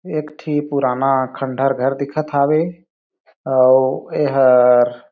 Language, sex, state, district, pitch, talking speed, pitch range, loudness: Chhattisgarhi, male, Chhattisgarh, Sarguja, 135 Hz, 115 wpm, 130-150 Hz, -16 LUFS